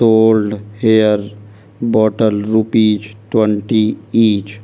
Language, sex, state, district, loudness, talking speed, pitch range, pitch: Hindi, male, Delhi, New Delhi, -14 LUFS, 80 wpm, 105-110 Hz, 110 Hz